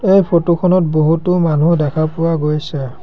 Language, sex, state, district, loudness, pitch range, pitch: Assamese, male, Assam, Sonitpur, -14 LUFS, 155-175 Hz, 165 Hz